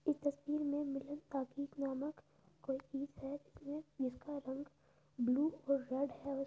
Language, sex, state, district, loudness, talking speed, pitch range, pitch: Hindi, female, Uttar Pradesh, Etah, -41 LUFS, 155 wpm, 270-290 Hz, 280 Hz